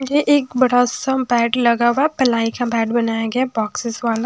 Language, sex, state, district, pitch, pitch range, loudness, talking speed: Hindi, female, Haryana, Charkhi Dadri, 245 Hz, 230-260 Hz, -18 LUFS, 195 wpm